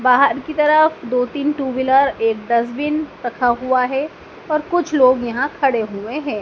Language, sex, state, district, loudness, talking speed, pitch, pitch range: Hindi, female, Madhya Pradesh, Dhar, -18 LUFS, 175 wpm, 270 Hz, 240-300 Hz